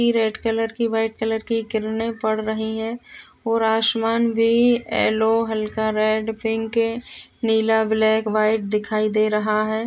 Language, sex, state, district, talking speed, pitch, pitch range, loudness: Hindi, female, Uttar Pradesh, Jalaun, 145 wpm, 220 Hz, 220-225 Hz, -21 LUFS